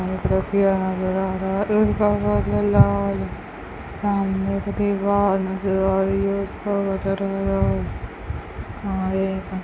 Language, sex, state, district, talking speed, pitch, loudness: Hindi, female, Rajasthan, Bikaner, 50 wpm, 190 Hz, -22 LUFS